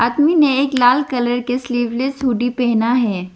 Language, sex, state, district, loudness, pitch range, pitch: Hindi, female, Arunachal Pradesh, Lower Dibang Valley, -16 LUFS, 240-265 Hz, 245 Hz